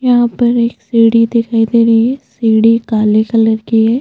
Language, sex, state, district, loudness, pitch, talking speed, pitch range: Hindi, female, Chhattisgarh, Bastar, -11 LUFS, 230 Hz, 195 wpm, 225-235 Hz